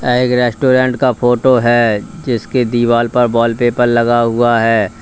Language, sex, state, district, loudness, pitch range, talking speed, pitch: Hindi, male, Uttar Pradesh, Lalitpur, -13 LUFS, 115-125 Hz, 145 wpm, 120 Hz